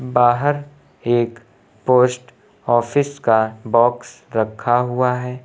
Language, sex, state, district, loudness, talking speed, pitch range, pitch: Hindi, male, Uttar Pradesh, Lucknow, -18 LUFS, 100 wpm, 120-125 Hz, 120 Hz